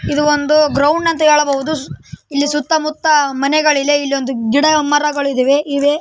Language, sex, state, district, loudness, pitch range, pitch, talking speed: Kannada, female, Karnataka, Raichur, -14 LUFS, 280-305 Hz, 295 Hz, 130 wpm